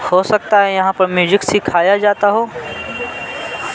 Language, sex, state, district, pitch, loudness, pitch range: Hindi, male, Bihar, Patna, 200 Hz, -15 LUFS, 190-205 Hz